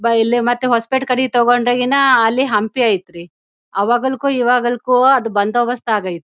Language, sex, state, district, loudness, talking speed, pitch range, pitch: Kannada, female, Karnataka, Bellary, -15 LUFS, 145 wpm, 225-250 Hz, 240 Hz